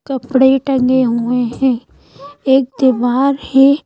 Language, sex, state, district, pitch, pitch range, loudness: Hindi, female, Madhya Pradesh, Bhopal, 265 Hz, 250-270 Hz, -14 LUFS